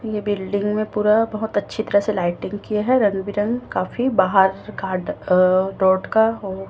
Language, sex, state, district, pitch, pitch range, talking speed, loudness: Hindi, female, Chhattisgarh, Raipur, 205 Hz, 190-215 Hz, 180 wpm, -20 LUFS